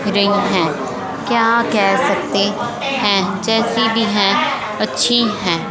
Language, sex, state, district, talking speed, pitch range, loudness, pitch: Hindi, female, Punjab, Fazilka, 115 wpm, 200-230 Hz, -16 LUFS, 210 Hz